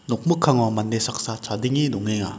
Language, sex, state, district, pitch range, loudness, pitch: Garo, male, Meghalaya, West Garo Hills, 105-135 Hz, -22 LUFS, 115 Hz